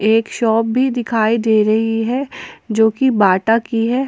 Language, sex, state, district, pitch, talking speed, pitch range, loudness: Hindi, female, Jharkhand, Ranchi, 225 Hz, 175 wpm, 220-240 Hz, -16 LUFS